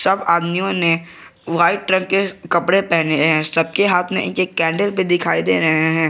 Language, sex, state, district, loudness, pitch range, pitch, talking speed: Hindi, male, Jharkhand, Garhwa, -17 LUFS, 165-190 Hz, 170 Hz, 195 wpm